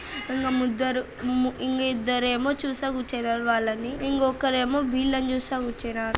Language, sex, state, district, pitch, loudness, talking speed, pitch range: Telugu, female, Andhra Pradesh, Anantapur, 255 Hz, -26 LUFS, 115 wpm, 245-265 Hz